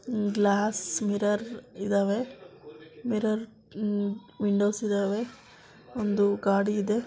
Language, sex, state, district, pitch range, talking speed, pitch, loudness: Kannada, female, Karnataka, Dakshina Kannada, 200-220 Hz, 85 wpm, 205 Hz, -28 LUFS